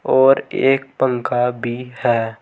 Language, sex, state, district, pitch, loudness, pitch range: Hindi, male, Uttar Pradesh, Saharanpur, 125 Hz, -18 LUFS, 120-135 Hz